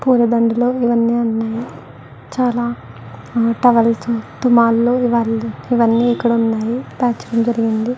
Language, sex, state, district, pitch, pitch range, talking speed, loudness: Telugu, female, Andhra Pradesh, Guntur, 235 Hz, 225-240 Hz, 100 wpm, -16 LUFS